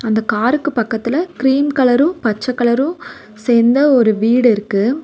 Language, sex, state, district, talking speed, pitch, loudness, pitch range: Tamil, female, Tamil Nadu, Nilgiris, 120 wpm, 245 Hz, -15 LUFS, 225-275 Hz